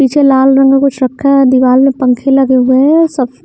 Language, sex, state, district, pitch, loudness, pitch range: Hindi, female, Himachal Pradesh, Shimla, 270 Hz, -9 LUFS, 260-275 Hz